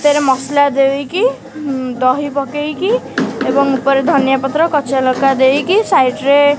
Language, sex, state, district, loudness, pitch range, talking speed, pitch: Odia, female, Odisha, Khordha, -14 LUFS, 270-295 Hz, 145 wpm, 280 Hz